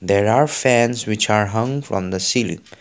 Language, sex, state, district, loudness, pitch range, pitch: English, male, Assam, Kamrup Metropolitan, -18 LUFS, 100-125 Hz, 110 Hz